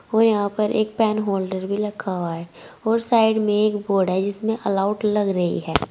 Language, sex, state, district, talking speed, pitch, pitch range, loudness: Hindi, female, Uttar Pradesh, Saharanpur, 225 wpm, 210 Hz, 195-220 Hz, -21 LUFS